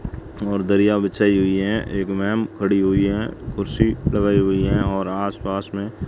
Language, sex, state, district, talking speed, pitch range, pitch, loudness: Hindi, male, Rajasthan, Bikaner, 185 wpm, 95-105 Hz, 100 Hz, -20 LUFS